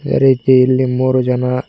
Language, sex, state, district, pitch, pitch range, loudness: Kannada, male, Karnataka, Koppal, 130 Hz, 125-130 Hz, -13 LUFS